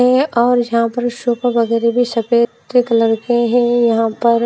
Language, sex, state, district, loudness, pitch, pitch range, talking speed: Hindi, female, Himachal Pradesh, Shimla, -15 LUFS, 235 Hz, 230-245 Hz, 135 wpm